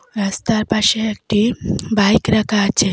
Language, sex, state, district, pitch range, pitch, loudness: Bengali, female, Assam, Hailakandi, 205-220 Hz, 215 Hz, -17 LUFS